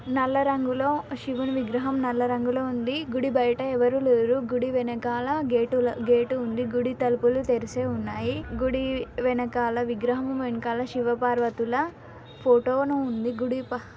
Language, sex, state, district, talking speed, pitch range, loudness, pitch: Telugu, female, Telangana, Nalgonda, 130 wpm, 240-260 Hz, -26 LUFS, 250 Hz